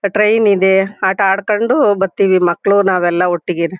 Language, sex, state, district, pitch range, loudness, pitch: Kannada, female, Karnataka, Shimoga, 180-200 Hz, -13 LUFS, 195 Hz